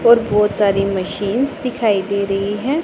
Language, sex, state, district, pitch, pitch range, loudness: Hindi, female, Punjab, Pathankot, 210 Hz, 200-240 Hz, -17 LUFS